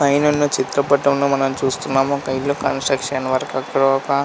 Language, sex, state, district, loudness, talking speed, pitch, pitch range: Telugu, male, Andhra Pradesh, Visakhapatnam, -18 LUFS, 155 wpm, 140 Hz, 135-140 Hz